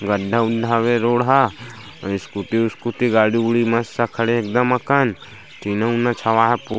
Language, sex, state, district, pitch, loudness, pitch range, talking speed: Chhattisgarhi, male, Chhattisgarh, Sarguja, 115 Hz, -19 LUFS, 110-120 Hz, 170 wpm